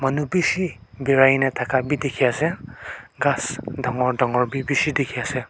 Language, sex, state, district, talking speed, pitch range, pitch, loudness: Nagamese, male, Nagaland, Kohima, 165 wpm, 125-140 Hz, 135 Hz, -21 LUFS